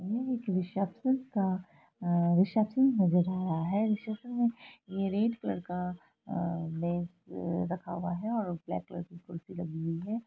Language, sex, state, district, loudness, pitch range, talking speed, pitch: Hindi, female, Bihar, Araria, -32 LUFS, 175-220 Hz, 160 wpm, 185 Hz